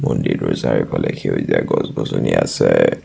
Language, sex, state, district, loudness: Assamese, male, Assam, Sonitpur, -18 LUFS